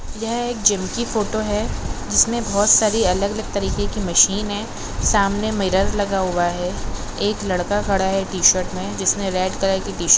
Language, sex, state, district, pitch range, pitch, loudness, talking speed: Hindi, female, Maharashtra, Sindhudurg, 190-215 Hz, 200 Hz, -19 LUFS, 190 wpm